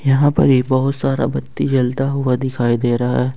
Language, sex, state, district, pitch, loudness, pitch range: Hindi, male, Jharkhand, Ranchi, 130 Hz, -17 LUFS, 120-135 Hz